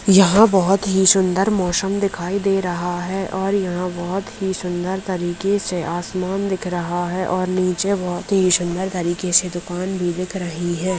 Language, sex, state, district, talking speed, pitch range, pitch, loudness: Hindi, female, Uttar Pradesh, Ghazipur, 175 wpm, 175-195 Hz, 185 Hz, -19 LUFS